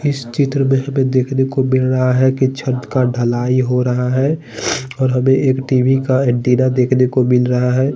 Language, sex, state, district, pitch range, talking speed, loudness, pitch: Hindi, male, Bihar, Patna, 125-135 Hz, 205 wpm, -15 LUFS, 130 Hz